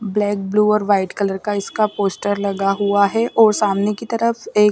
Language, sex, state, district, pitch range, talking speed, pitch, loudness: Hindi, female, Delhi, New Delhi, 200-210 Hz, 205 wpm, 205 Hz, -18 LUFS